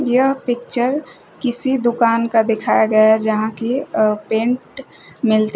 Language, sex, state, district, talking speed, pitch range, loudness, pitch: Hindi, female, Uttar Pradesh, Shamli, 140 wpm, 220-250 Hz, -17 LUFS, 235 Hz